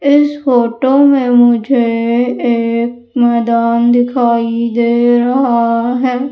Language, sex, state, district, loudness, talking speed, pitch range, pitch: Hindi, female, Madhya Pradesh, Umaria, -12 LUFS, 95 wpm, 235-255 Hz, 240 Hz